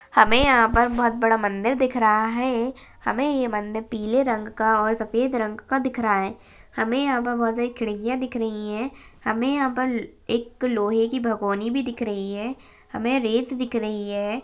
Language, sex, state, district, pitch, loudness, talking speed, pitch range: Hindi, female, Maharashtra, Chandrapur, 235 Hz, -23 LUFS, 190 wpm, 220-255 Hz